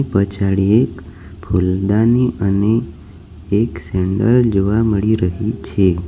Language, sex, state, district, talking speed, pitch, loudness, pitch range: Gujarati, male, Gujarat, Valsad, 100 wpm, 100 Hz, -16 LUFS, 90-110 Hz